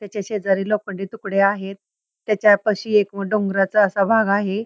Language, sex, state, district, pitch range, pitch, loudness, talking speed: Marathi, female, Maharashtra, Pune, 195-210 Hz, 200 Hz, -19 LUFS, 140 wpm